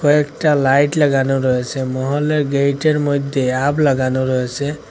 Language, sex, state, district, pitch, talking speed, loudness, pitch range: Bengali, male, Assam, Hailakandi, 140 Hz, 120 wpm, -17 LUFS, 130-145 Hz